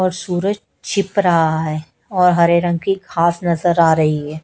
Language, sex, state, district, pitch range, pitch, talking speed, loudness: Hindi, female, Haryana, Charkhi Dadri, 160-185 Hz, 170 Hz, 190 wpm, -17 LUFS